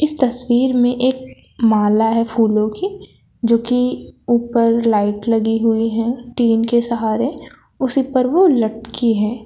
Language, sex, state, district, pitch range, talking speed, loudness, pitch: Hindi, female, Uttar Pradesh, Lucknow, 225-250 Hz, 140 wpm, -17 LUFS, 235 Hz